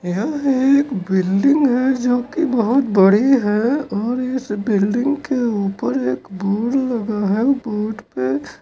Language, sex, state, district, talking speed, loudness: Hindi, male, Uttar Pradesh, Lucknow, 140 wpm, -18 LUFS